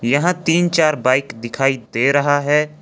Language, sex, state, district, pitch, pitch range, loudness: Hindi, male, Jharkhand, Ranchi, 145 Hz, 130-155 Hz, -17 LUFS